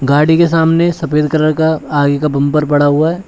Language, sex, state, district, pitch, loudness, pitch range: Hindi, male, Uttar Pradesh, Shamli, 155 Hz, -12 LUFS, 145-160 Hz